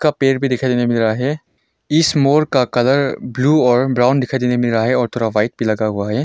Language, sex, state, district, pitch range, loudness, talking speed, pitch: Hindi, male, Arunachal Pradesh, Longding, 120-140 Hz, -16 LUFS, 270 wpm, 125 Hz